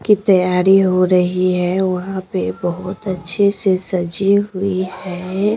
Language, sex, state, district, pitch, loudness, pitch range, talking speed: Hindi, female, Bihar, Patna, 185 Hz, -17 LUFS, 180-195 Hz, 140 wpm